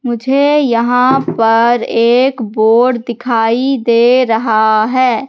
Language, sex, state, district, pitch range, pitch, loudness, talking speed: Hindi, female, Madhya Pradesh, Katni, 230-255 Hz, 240 Hz, -11 LUFS, 100 wpm